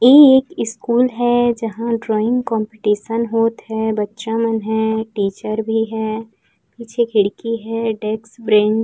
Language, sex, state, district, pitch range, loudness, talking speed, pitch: Chhattisgarhi, female, Chhattisgarh, Raigarh, 220-235 Hz, -18 LUFS, 135 wpm, 225 Hz